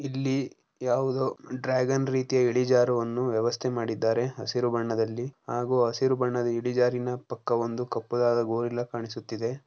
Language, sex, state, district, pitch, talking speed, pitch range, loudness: Kannada, male, Karnataka, Dharwad, 125 Hz, 110 wpm, 120-130 Hz, -27 LUFS